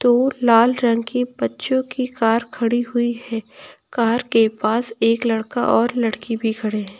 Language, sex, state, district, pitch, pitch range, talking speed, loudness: Hindi, female, Uttar Pradesh, Lucknow, 235 Hz, 225-245 Hz, 170 wpm, -20 LUFS